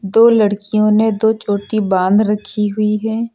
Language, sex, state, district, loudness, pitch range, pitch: Hindi, female, Uttar Pradesh, Lucknow, -14 LUFS, 205-220 Hz, 215 Hz